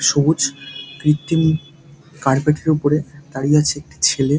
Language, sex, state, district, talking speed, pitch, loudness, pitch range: Bengali, male, West Bengal, Dakshin Dinajpur, 125 wpm, 150 Hz, -18 LUFS, 140-150 Hz